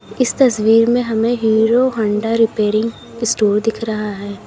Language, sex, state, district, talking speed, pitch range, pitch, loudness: Hindi, female, Uttar Pradesh, Lalitpur, 135 wpm, 215-230 Hz, 225 Hz, -16 LUFS